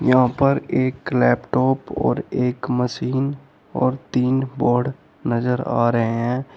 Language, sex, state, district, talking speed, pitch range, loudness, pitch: Hindi, male, Uttar Pradesh, Shamli, 130 wpm, 120-135 Hz, -21 LUFS, 130 Hz